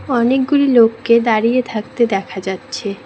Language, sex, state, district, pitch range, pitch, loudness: Bengali, female, West Bengal, Cooch Behar, 215-255 Hz, 235 Hz, -15 LUFS